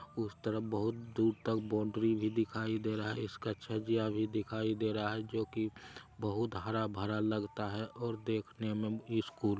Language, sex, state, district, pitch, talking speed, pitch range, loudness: Hindi, male, Bihar, Araria, 110 Hz, 190 wpm, 105-110 Hz, -36 LUFS